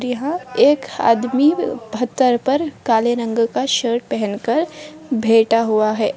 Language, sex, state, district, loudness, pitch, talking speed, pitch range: Hindi, female, Bihar, Madhepura, -18 LUFS, 245 Hz, 135 wpm, 230-280 Hz